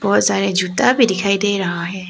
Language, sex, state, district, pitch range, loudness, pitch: Hindi, female, Arunachal Pradesh, Papum Pare, 185-200 Hz, -16 LUFS, 195 Hz